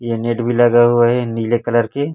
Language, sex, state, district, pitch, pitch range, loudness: Hindi, male, Chhattisgarh, Raipur, 120 Hz, 115-120 Hz, -15 LUFS